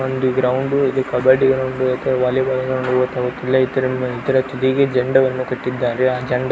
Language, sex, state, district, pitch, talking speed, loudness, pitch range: Kannada, male, Karnataka, Belgaum, 130 Hz, 155 wpm, -18 LUFS, 125-130 Hz